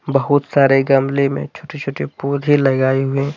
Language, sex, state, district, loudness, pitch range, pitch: Hindi, male, Jharkhand, Deoghar, -16 LUFS, 135-145 Hz, 140 Hz